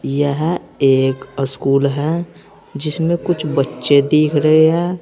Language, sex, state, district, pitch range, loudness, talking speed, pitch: Hindi, male, Uttar Pradesh, Saharanpur, 135-160 Hz, -16 LUFS, 120 wpm, 150 Hz